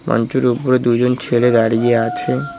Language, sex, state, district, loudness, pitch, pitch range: Bengali, male, West Bengal, Cooch Behar, -15 LUFS, 120 Hz, 120-130 Hz